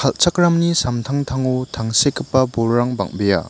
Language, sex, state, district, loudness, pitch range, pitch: Garo, male, Meghalaya, West Garo Hills, -18 LUFS, 115-140 Hz, 130 Hz